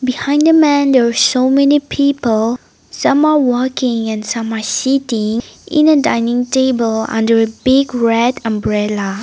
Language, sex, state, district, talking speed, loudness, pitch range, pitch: English, female, Nagaland, Dimapur, 155 wpm, -14 LUFS, 225-275 Hz, 245 Hz